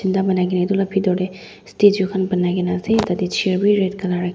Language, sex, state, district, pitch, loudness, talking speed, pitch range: Nagamese, female, Nagaland, Dimapur, 190 Hz, -19 LUFS, 180 wpm, 180-195 Hz